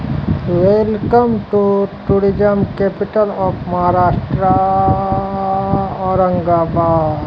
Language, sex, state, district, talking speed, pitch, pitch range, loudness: Hindi, male, Bihar, Katihar, 65 wpm, 195 Hz, 175-200 Hz, -15 LUFS